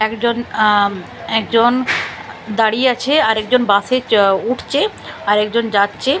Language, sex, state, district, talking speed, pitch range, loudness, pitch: Bengali, female, Bihar, Katihar, 135 wpm, 205-245 Hz, -16 LUFS, 220 Hz